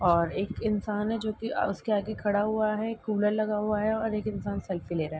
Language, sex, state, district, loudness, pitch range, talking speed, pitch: Hindi, female, Uttar Pradesh, Ghazipur, -29 LUFS, 200-215 Hz, 255 wpm, 210 Hz